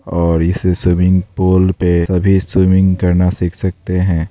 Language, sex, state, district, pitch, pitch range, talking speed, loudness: Hindi, male, Bihar, Darbhanga, 90 Hz, 90-95 Hz, 155 wpm, -14 LUFS